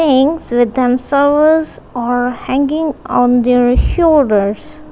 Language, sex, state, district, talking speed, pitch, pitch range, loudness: English, female, Punjab, Kapurthala, 85 wpm, 255 Hz, 245-300 Hz, -13 LUFS